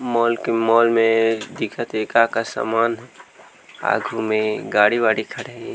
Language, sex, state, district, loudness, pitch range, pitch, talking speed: Chhattisgarhi, male, Chhattisgarh, Rajnandgaon, -19 LUFS, 110-115 Hz, 115 Hz, 155 wpm